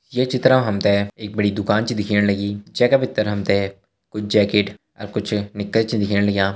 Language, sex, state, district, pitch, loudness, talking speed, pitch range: Hindi, male, Uttarakhand, Uttarkashi, 105 Hz, -20 LUFS, 220 wpm, 100-110 Hz